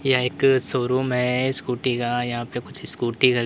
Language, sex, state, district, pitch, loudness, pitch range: Hindi, male, Uttar Pradesh, Lalitpur, 125 Hz, -22 LUFS, 120-130 Hz